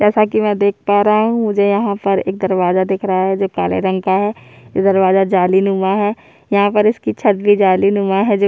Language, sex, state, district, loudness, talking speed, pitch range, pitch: Hindi, male, Chhattisgarh, Sukma, -15 LUFS, 235 wpm, 190-205 Hz, 200 Hz